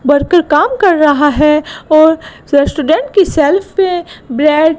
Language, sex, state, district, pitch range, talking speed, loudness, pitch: Hindi, female, Gujarat, Gandhinagar, 295-345 Hz, 150 wpm, -11 LUFS, 310 Hz